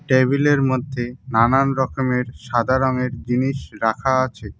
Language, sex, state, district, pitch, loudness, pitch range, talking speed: Bengali, male, West Bengal, Cooch Behar, 130 Hz, -20 LUFS, 120-130 Hz, 115 wpm